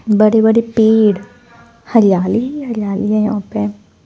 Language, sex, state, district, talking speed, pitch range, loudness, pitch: Hindi, female, Punjab, Fazilka, 150 wpm, 205-225 Hz, -14 LUFS, 215 Hz